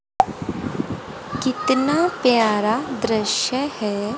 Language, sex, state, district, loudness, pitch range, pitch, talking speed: Hindi, female, Haryana, Jhajjar, -21 LUFS, 215-265 Hz, 250 Hz, 55 wpm